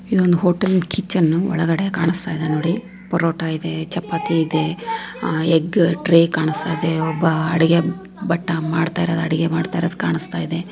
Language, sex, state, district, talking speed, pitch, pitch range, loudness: Kannada, female, Karnataka, Raichur, 145 wpm, 165 Hz, 160-180 Hz, -19 LUFS